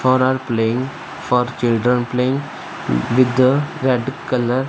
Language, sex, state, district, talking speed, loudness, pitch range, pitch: English, male, Punjab, Fazilka, 140 wpm, -18 LUFS, 120-130 Hz, 130 Hz